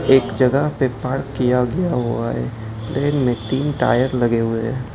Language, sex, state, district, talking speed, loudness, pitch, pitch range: Hindi, male, Gujarat, Gandhinagar, 180 wpm, -19 LUFS, 125 Hz, 120-135 Hz